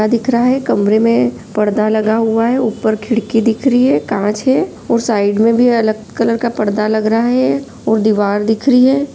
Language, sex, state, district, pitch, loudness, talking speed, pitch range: Angika, female, Bihar, Supaul, 220 Hz, -14 LUFS, 215 wpm, 215-235 Hz